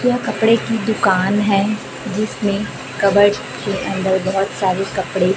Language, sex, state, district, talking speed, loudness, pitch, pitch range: Hindi, female, Chhattisgarh, Raipur, 135 wpm, -18 LUFS, 200 Hz, 190-215 Hz